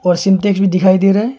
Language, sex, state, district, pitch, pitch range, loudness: Hindi, male, Arunachal Pradesh, Longding, 195 Hz, 185-200 Hz, -12 LUFS